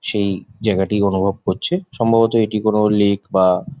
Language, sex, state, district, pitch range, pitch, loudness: Bengali, male, West Bengal, Jhargram, 100-115 Hz, 105 Hz, -17 LUFS